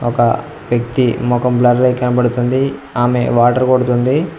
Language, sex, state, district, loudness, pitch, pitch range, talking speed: Telugu, male, Telangana, Mahabubabad, -14 LUFS, 125 Hz, 120-130 Hz, 125 wpm